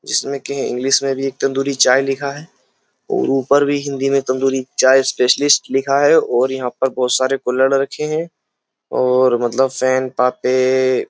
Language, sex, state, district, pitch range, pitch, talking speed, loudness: Hindi, male, Uttar Pradesh, Jyotiba Phule Nagar, 130-135 Hz, 135 Hz, 180 wpm, -16 LUFS